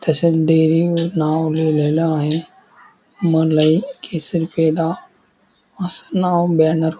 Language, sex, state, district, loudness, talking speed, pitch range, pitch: Marathi, male, Maharashtra, Dhule, -17 LUFS, 110 wpm, 160-175 Hz, 165 Hz